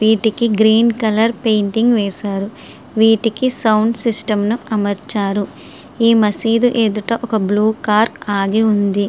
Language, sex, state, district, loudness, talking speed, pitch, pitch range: Telugu, female, Andhra Pradesh, Srikakulam, -15 LUFS, 110 wpm, 220 Hz, 205-230 Hz